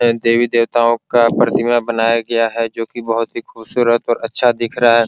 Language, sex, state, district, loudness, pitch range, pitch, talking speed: Hindi, male, Bihar, Araria, -16 LUFS, 115-120 Hz, 115 Hz, 200 wpm